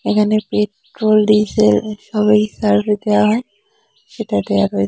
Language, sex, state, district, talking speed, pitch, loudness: Bengali, female, West Bengal, Purulia, 125 wpm, 210 Hz, -16 LUFS